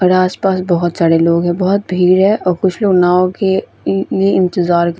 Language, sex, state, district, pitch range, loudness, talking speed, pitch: Hindi, female, Bihar, Vaishali, 175-190 Hz, -13 LUFS, 190 wpm, 185 Hz